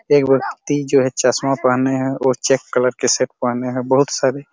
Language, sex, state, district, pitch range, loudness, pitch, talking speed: Hindi, male, Chhattisgarh, Raigarh, 125-135 Hz, -17 LUFS, 130 Hz, 210 wpm